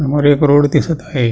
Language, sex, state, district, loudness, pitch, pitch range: Marathi, male, Maharashtra, Pune, -13 LUFS, 145 Hz, 140-150 Hz